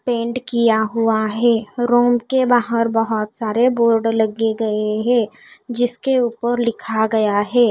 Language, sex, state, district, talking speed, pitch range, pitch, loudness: Hindi, female, Odisha, Nuapada, 140 wpm, 220-240 Hz, 230 Hz, -18 LUFS